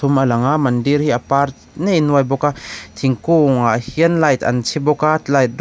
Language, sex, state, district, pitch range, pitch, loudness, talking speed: Mizo, male, Mizoram, Aizawl, 130-150 Hz, 140 Hz, -16 LUFS, 235 wpm